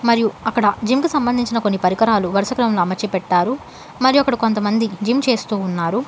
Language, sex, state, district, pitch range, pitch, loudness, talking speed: Telugu, female, Telangana, Hyderabad, 200-245 Hz, 225 Hz, -18 LUFS, 160 wpm